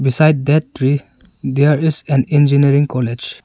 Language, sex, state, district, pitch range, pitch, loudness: English, male, Arunachal Pradesh, Longding, 135-150 Hz, 140 Hz, -15 LUFS